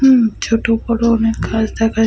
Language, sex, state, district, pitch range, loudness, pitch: Bengali, female, Jharkhand, Sahebganj, 225-230 Hz, -16 LUFS, 225 Hz